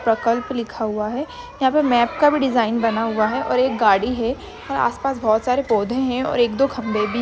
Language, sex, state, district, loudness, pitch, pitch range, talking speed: Hindi, female, Maharashtra, Chandrapur, -20 LUFS, 240 Hz, 225-260 Hz, 225 wpm